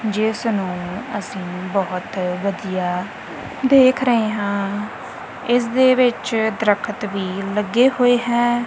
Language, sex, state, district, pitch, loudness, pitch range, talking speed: Punjabi, female, Punjab, Kapurthala, 210 Hz, -19 LUFS, 195-240 Hz, 110 wpm